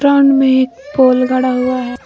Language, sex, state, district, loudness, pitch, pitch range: Hindi, female, Jharkhand, Garhwa, -12 LUFS, 260 Hz, 255-270 Hz